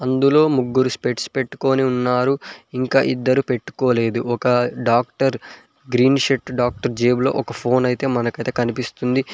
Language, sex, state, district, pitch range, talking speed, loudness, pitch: Telugu, male, Telangana, Mahabubabad, 120-135 Hz, 120 wpm, -19 LUFS, 125 Hz